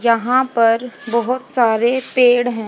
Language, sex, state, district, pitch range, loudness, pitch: Hindi, female, Haryana, Jhajjar, 230-255 Hz, -16 LUFS, 245 Hz